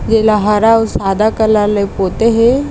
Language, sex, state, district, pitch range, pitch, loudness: Chhattisgarhi, female, Chhattisgarh, Bilaspur, 210-225 Hz, 220 Hz, -12 LUFS